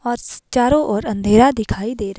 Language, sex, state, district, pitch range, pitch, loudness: Hindi, female, Himachal Pradesh, Shimla, 210-245 Hz, 225 Hz, -17 LUFS